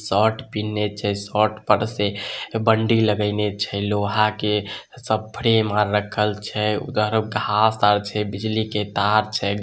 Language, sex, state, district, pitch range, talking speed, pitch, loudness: Maithili, male, Bihar, Samastipur, 105-110 Hz, 150 wpm, 105 Hz, -21 LUFS